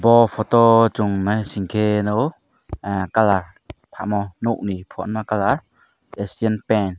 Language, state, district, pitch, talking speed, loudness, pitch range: Kokborok, Tripura, Dhalai, 105 Hz, 130 wpm, -20 LUFS, 100-110 Hz